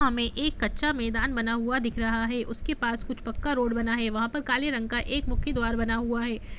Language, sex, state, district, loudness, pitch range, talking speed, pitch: Hindi, female, Bihar, Gopalganj, -28 LUFS, 230-260 Hz, 235 wpm, 235 Hz